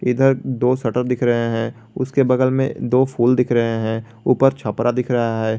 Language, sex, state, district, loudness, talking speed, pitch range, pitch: Hindi, male, Jharkhand, Garhwa, -19 LUFS, 205 wpm, 115-130 Hz, 125 Hz